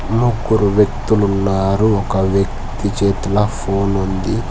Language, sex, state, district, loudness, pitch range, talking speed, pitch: Telugu, male, Telangana, Hyderabad, -17 LUFS, 95-110 Hz, 105 wpm, 100 Hz